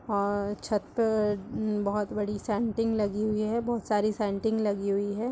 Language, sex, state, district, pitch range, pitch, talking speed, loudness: Hindi, female, Chhattisgarh, Kabirdham, 205-220 Hz, 210 Hz, 170 wpm, -29 LUFS